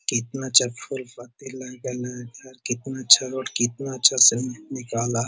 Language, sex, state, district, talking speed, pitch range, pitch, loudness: Hindi, male, Bihar, Jahanabad, 180 wpm, 120-130 Hz, 125 Hz, -21 LUFS